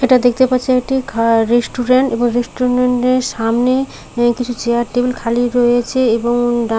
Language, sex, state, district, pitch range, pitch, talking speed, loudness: Bengali, female, West Bengal, Paschim Medinipur, 240-255 Hz, 245 Hz, 150 wpm, -15 LUFS